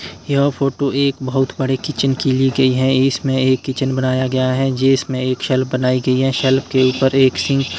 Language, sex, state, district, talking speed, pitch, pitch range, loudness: Hindi, male, Himachal Pradesh, Shimla, 215 wpm, 130 Hz, 130-135 Hz, -17 LUFS